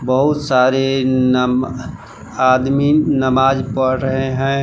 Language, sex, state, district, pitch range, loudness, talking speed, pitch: Hindi, male, Jharkhand, Palamu, 130-135 Hz, -15 LUFS, 105 wpm, 130 Hz